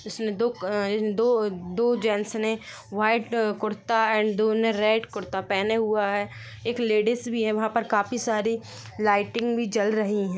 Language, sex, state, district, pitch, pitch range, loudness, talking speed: Hindi, female, Jharkhand, Sahebganj, 215 Hz, 205-230 Hz, -25 LUFS, 155 wpm